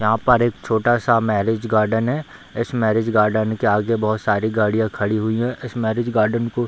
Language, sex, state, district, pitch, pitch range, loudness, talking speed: Hindi, male, Bihar, Darbhanga, 110 Hz, 110-120 Hz, -19 LUFS, 215 wpm